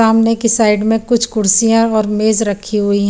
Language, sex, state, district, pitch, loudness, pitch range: Hindi, female, Chandigarh, Chandigarh, 220 Hz, -13 LUFS, 210-225 Hz